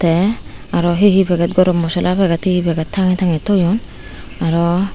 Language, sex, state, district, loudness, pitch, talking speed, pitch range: Chakma, female, Tripura, Unakoti, -15 LUFS, 180 Hz, 180 wpm, 170-190 Hz